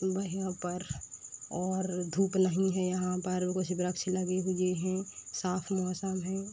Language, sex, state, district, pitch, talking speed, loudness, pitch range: Hindi, female, Uttar Pradesh, Deoria, 185 Hz, 155 wpm, -33 LUFS, 180-190 Hz